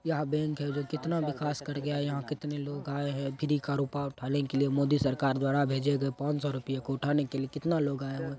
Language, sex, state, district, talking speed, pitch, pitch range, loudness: Angika, male, Bihar, Begusarai, 265 wpm, 145 Hz, 135-150 Hz, -31 LUFS